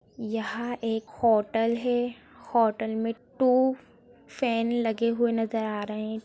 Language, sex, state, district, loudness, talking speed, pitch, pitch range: Hindi, female, Bihar, Gaya, -27 LUFS, 145 wpm, 230 Hz, 220-245 Hz